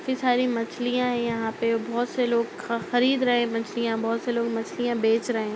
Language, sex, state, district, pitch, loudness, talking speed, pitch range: Hindi, female, Bihar, Darbhanga, 235 Hz, -25 LUFS, 225 wpm, 230-245 Hz